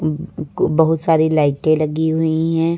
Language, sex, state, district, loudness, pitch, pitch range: Hindi, female, Uttar Pradesh, Lucknow, -17 LUFS, 160 Hz, 155-160 Hz